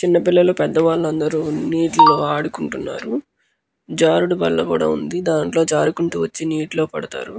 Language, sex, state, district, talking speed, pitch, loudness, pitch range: Telugu, male, Andhra Pradesh, Krishna, 115 wpm, 160 Hz, -18 LUFS, 155-175 Hz